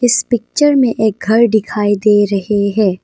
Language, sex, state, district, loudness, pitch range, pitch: Hindi, female, Arunachal Pradesh, Papum Pare, -13 LUFS, 205-235 Hz, 215 Hz